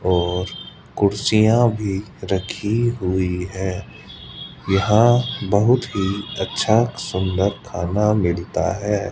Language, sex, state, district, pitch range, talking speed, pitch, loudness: Hindi, male, Rajasthan, Jaipur, 95-110 Hz, 90 wpm, 100 Hz, -20 LUFS